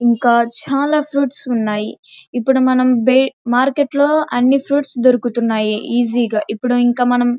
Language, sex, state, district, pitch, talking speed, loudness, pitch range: Telugu, female, Andhra Pradesh, Krishna, 245 Hz, 115 wpm, -15 LUFS, 235-270 Hz